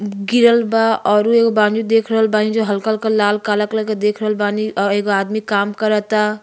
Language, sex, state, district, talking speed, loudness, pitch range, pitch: Bhojpuri, female, Uttar Pradesh, Gorakhpur, 215 wpm, -16 LUFS, 210-220 Hz, 215 Hz